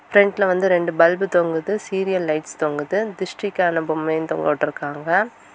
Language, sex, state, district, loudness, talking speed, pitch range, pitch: Tamil, female, Tamil Nadu, Kanyakumari, -20 LUFS, 120 wpm, 155-195 Hz, 175 Hz